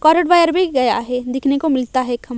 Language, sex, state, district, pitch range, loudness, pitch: Hindi, female, Odisha, Malkangiri, 250-315 Hz, -16 LUFS, 265 Hz